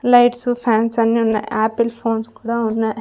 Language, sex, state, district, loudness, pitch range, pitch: Telugu, female, Andhra Pradesh, Sri Satya Sai, -18 LUFS, 220-235 Hz, 230 Hz